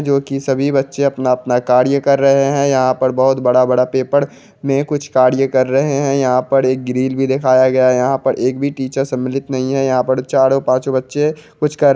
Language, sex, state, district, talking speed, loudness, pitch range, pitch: Hindi, male, Bihar, Jahanabad, 220 wpm, -15 LUFS, 130-140 Hz, 135 Hz